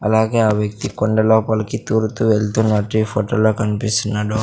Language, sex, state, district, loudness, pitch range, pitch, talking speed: Telugu, male, Andhra Pradesh, Sri Satya Sai, -17 LUFS, 105-110 Hz, 110 Hz, 135 wpm